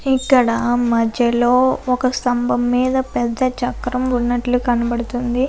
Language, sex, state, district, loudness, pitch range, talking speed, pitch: Telugu, female, Andhra Pradesh, Anantapur, -18 LUFS, 240-255 Hz, 85 wpm, 245 Hz